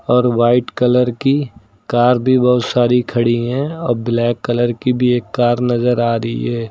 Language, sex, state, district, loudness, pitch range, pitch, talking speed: Hindi, male, Uttar Pradesh, Lucknow, -15 LUFS, 120-125 Hz, 120 Hz, 190 wpm